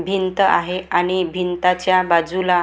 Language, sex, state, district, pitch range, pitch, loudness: Marathi, female, Maharashtra, Gondia, 180-185 Hz, 180 Hz, -18 LUFS